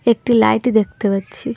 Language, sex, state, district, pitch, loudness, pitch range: Bengali, female, Tripura, Dhalai, 225 Hz, -16 LUFS, 195-235 Hz